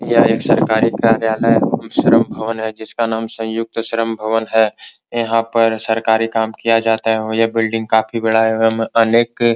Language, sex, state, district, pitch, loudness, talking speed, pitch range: Hindi, male, Bihar, Supaul, 115 Hz, -16 LUFS, 190 wpm, 110-115 Hz